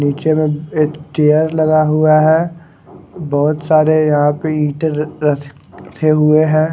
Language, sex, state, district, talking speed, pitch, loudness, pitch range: Hindi, male, Odisha, Khordha, 150 wpm, 155 Hz, -14 LUFS, 150-155 Hz